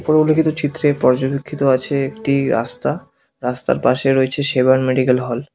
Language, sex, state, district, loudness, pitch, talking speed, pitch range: Bengali, male, West Bengal, Cooch Behar, -17 LUFS, 135 Hz, 140 wpm, 130-145 Hz